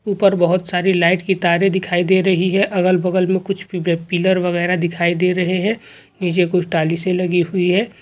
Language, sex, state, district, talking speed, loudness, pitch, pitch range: Hindi, male, Rajasthan, Churu, 195 wpm, -17 LUFS, 180 Hz, 175-190 Hz